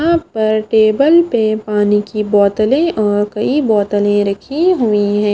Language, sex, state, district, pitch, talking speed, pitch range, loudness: Hindi, female, Himachal Pradesh, Shimla, 215 Hz, 145 wpm, 205-270 Hz, -14 LUFS